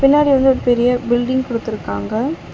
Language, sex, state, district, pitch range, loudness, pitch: Tamil, female, Tamil Nadu, Chennai, 230-265 Hz, -16 LUFS, 245 Hz